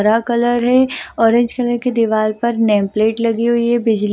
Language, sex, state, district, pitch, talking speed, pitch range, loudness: Hindi, female, Bihar, Samastipur, 235 Hz, 215 wpm, 220-240 Hz, -15 LUFS